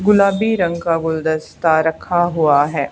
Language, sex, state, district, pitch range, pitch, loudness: Hindi, female, Haryana, Charkhi Dadri, 160-175 Hz, 165 Hz, -16 LUFS